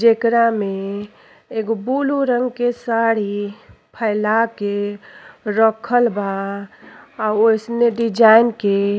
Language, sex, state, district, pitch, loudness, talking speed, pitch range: Bhojpuri, female, Uttar Pradesh, Ghazipur, 225 Hz, -18 LUFS, 105 wpm, 205-235 Hz